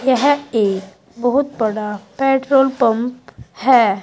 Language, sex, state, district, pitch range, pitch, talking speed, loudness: Hindi, female, Uttar Pradesh, Saharanpur, 205-270 Hz, 240 Hz, 105 wpm, -17 LUFS